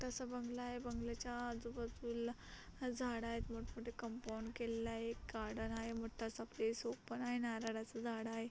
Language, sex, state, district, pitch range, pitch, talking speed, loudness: Marathi, female, Maharashtra, Solapur, 225-240 Hz, 230 Hz, 150 wpm, -45 LUFS